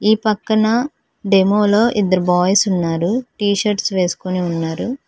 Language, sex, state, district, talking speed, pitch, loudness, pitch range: Telugu, female, Telangana, Hyderabad, 120 wpm, 205 Hz, -16 LUFS, 185-220 Hz